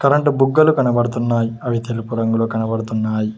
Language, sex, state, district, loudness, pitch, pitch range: Telugu, male, Telangana, Mahabubabad, -18 LUFS, 115 Hz, 115-130 Hz